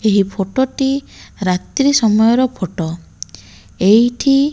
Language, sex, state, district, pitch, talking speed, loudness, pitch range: Odia, female, Odisha, Malkangiri, 210 Hz, 95 wpm, -15 LUFS, 180-260 Hz